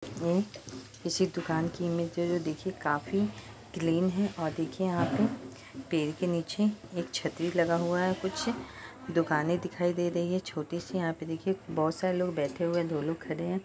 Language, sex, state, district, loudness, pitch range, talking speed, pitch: Hindi, female, Bihar, Purnia, -31 LUFS, 155-180 Hz, 180 wpm, 170 Hz